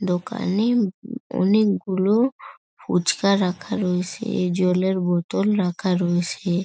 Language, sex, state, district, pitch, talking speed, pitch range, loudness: Bengali, female, West Bengal, North 24 Parganas, 190 Hz, 90 wpm, 180-210 Hz, -22 LUFS